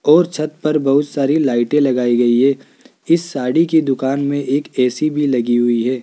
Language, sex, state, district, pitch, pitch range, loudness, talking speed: Hindi, male, Rajasthan, Jaipur, 140 Hz, 125-150 Hz, -16 LUFS, 200 wpm